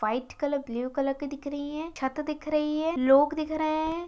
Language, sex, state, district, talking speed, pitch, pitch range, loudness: Hindi, female, Chhattisgarh, Balrampur, 235 wpm, 290 Hz, 275-310 Hz, -28 LUFS